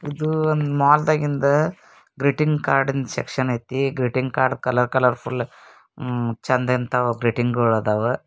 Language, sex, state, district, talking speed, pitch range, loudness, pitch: Kannada, male, Karnataka, Bijapur, 75 wpm, 125-145 Hz, -21 LUFS, 130 Hz